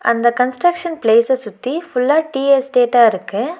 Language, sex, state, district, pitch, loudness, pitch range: Tamil, female, Tamil Nadu, Nilgiris, 250 Hz, -15 LUFS, 235-285 Hz